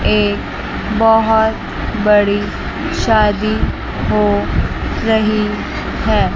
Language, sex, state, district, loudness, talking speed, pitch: Hindi, female, Chandigarh, Chandigarh, -16 LUFS, 65 wpm, 205 Hz